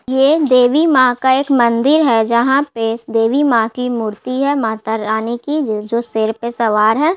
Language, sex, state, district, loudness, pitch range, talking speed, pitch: Hindi, female, Bihar, Gaya, -15 LUFS, 225-275 Hz, 175 wpm, 240 Hz